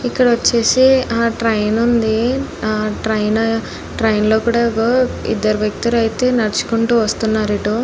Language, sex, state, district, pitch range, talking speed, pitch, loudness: Telugu, female, Andhra Pradesh, Anantapur, 220-235 Hz, 120 wpm, 225 Hz, -16 LUFS